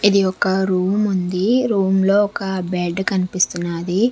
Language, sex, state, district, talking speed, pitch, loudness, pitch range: Telugu, female, Andhra Pradesh, Sri Satya Sai, 130 wpm, 190 Hz, -18 LUFS, 180-200 Hz